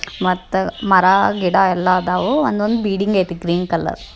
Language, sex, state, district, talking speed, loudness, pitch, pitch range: Kannada, male, Karnataka, Dharwad, 145 wpm, -17 LUFS, 190 Hz, 180-200 Hz